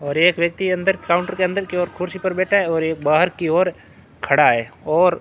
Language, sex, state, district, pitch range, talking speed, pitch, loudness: Hindi, male, Rajasthan, Bikaner, 165-185 Hz, 255 wpm, 180 Hz, -19 LUFS